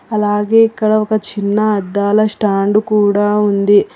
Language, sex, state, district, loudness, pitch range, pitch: Telugu, female, Telangana, Hyderabad, -14 LUFS, 205-215 Hz, 210 Hz